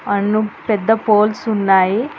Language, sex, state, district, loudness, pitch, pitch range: Telugu, female, Telangana, Hyderabad, -16 LUFS, 215 Hz, 200-220 Hz